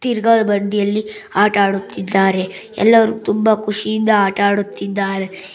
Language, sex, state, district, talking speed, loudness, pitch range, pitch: Kannada, female, Karnataka, Bangalore, 85 wpm, -16 LUFS, 195-215 Hz, 205 Hz